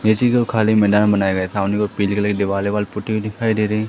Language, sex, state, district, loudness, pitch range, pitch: Hindi, male, Madhya Pradesh, Umaria, -18 LUFS, 100-110 Hz, 105 Hz